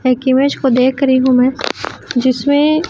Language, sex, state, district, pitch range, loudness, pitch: Hindi, male, Chhattisgarh, Raipur, 255-280 Hz, -13 LUFS, 260 Hz